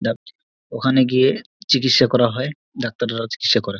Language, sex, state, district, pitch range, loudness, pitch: Bengali, male, West Bengal, Dakshin Dinajpur, 115-130 Hz, -18 LUFS, 125 Hz